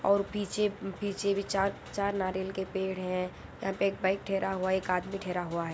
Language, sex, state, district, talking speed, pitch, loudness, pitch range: Hindi, female, Andhra Pradesh, Anantapur, 240 wpm, 195 Hz, -32 LUFS, 185-200 Hz